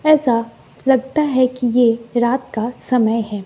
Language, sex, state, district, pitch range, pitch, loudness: Hindi, female, Bihar, West Champaran, 230-260 Hz, 245 Hz, -17 LUFS